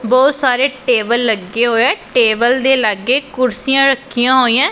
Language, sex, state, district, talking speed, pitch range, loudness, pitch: Punjabi, female, Punjab, Pathankot, 155 wpm, 235-265 Hz, -13 LUFS, 250 Hz